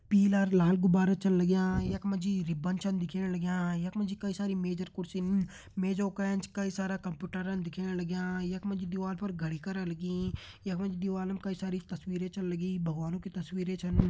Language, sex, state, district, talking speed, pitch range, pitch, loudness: Hindi, male, Uttarakhand, Uttarkashi, 200 wpm, 180-195 Hz, 185 Hz, -33 LUFS